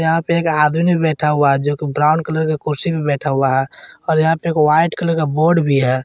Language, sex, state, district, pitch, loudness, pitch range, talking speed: Hindi, male, Jharkhand, Garhwa, 155 Hz, -16 LUFS, 145-165 Hz, 250 wpm